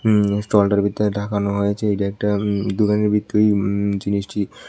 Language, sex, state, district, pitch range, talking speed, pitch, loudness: Bengali, male, Tripura, West Tripura, 100-105 Hz, 155 wpm, 100 Hz, -20 LUFS